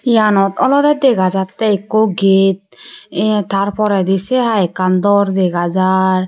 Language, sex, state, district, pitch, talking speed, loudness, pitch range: Chakma, female, Tripura, Unakoti, 195 Hz, 145 wpm, -14 LUFS, 190-215 Hz